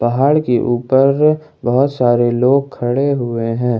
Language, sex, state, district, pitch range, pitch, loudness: Hindi, male, Jharkhand, Ranchi, 120-140 Hz, 125 Hz, -15 LUFS